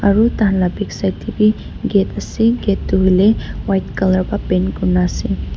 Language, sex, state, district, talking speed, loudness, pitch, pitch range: Nagamese, female, Nagaland, Dimapur, 205 wpm, -17 LUFS, 195 Hz, 185-210 Hz